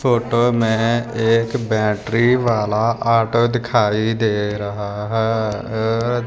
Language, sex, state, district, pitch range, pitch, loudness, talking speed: Hindi, male, Punjab, Fazilka, 110-120 Hz, 115 Hz, -18 LUFS, 95 wpm